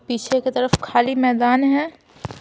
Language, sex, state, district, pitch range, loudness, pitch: Hindi, female, Bihar, Patna, 240-265 Hz, -19 LUFS, 255 Hz